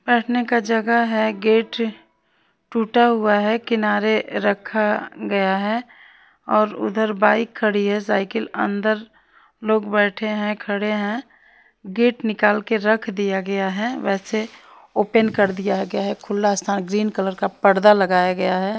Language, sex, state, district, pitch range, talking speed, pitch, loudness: Hindi, female, Odisha, Nuapada, 205-225 Hz, 145 wpm, 215 Hz, -20 LUFS